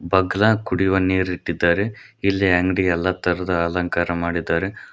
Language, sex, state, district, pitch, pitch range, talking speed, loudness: Kannada, male, Karnataka, Koppal, 90 Hz, 85-95 Hz, 120 wpm, -20 LUFS